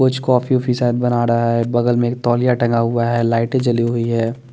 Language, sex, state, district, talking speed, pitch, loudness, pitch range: Hindi, male, Chandigarh, Chandigarh, 250 wpm, 120 Hz, -17 LUFS, 115-125 Hz